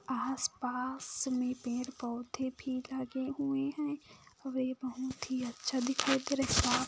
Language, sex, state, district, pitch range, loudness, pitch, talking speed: Hindi, female, Chhattisgarh, Korba, 250-265 Hz, -35 LUFS, 260 Hz, 120 wpm